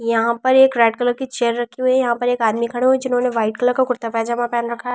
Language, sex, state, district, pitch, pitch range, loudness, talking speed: Hindi, female, Delhi, New Delhi, 240 Hz, 235-250 Hz, -18 LUFS, 325 wpm